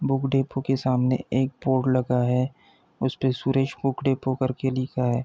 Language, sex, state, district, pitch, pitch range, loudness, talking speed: Hindi, male, Uttar Pradesh, Deoria, 130 Hz, 125-135 Hz, -25 LUFS, 195 wpm